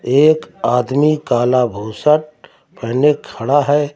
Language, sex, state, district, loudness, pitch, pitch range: Hindi, male, Uttar Pradesh, Lucknow, -15 LUFS, 145 Hz, 125-150 Hz